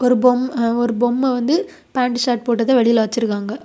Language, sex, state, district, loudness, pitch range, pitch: Tamil, female, Tamil Nadu, Kanyakumari, -18 LUFS, 230-250 Hz, 245 Hz